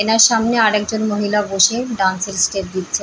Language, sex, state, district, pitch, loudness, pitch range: Bengali, female, West Bengal, Paschim Medinipur, 210 Hz, -16 LUFS, 195-225 Hz